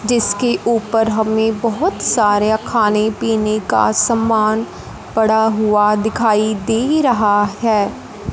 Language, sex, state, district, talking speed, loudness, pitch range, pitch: Hindi, female, Punjab, Fazilka, 110 wpm, -15 LUFS, 210-225 Hz, 220 Hz